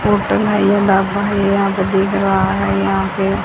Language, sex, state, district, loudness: Hindi, female, Haryana, Charkhi Dadri, -15 LUFS